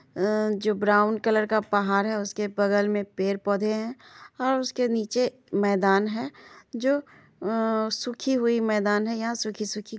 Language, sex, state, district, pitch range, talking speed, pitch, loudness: Hindi, female, Bihar, Madhepura, 205-230 Hz, 160 wpm, 215 Hz, -25 LUFS